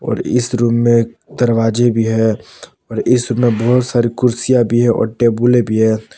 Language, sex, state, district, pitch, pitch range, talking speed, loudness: Hindi, male, Jharkhand, Palamu, 120 Hz, 115-120 Hz, 195 wpm, -14 LUFS